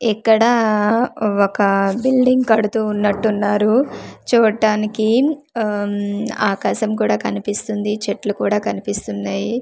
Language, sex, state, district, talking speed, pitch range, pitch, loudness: Telugu, female, Andhra Pradesh, Manyam, 80 wpm, 205-225 Hz, 210 Hz, -18 LUFS